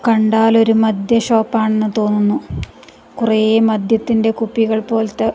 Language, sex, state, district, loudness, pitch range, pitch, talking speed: Malayalam, female, Kerala, Kasaragod, -15 LUFS, 220-225 Hz, 225 Hz, 125 wpm